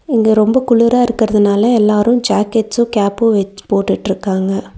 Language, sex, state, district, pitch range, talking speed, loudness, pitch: Tamil, female, Tamil Nadu, Nilgiris, 200-235 Hz, 115 wpm, -13 LUFS, 220 Hz